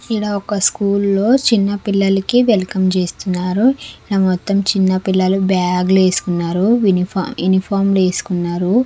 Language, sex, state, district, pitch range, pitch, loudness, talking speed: Telugu, female, Andhra Pradesh, Sri Satya Sai, 185-205 Hz, 195 Hz, -15 LUFS, 120 wpm